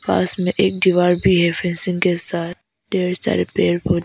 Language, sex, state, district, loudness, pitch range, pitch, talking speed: Hindi, female, Arunachal Pradesh, Papum Pare, -17 LUFS, 175-185 Hz, 180 Hz, 190 wpm